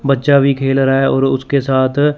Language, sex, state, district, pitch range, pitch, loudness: Hindi, male, Chandigarh, Chandigarh, 135-140 Hz, 135 Hz, -13 LUFS